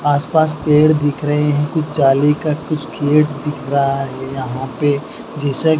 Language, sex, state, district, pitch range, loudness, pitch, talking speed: Hindi, male, Madhya Pradesh, Dhar, 140-150 Hz, -16 LUFS, 145 Hz, 175 wpm